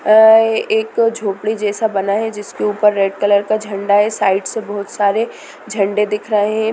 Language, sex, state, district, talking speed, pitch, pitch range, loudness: Hindi, female, Bihar, Sitamarhi, 180 wpm, 210 Hz, 205-220 Hz, -16 LUFS